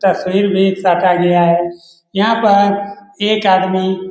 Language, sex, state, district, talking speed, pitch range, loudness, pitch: Hindi, male, Bihar, Lakhisarai, 145 wpm, 180-200 Hz, -14 LUFS, 190 Hz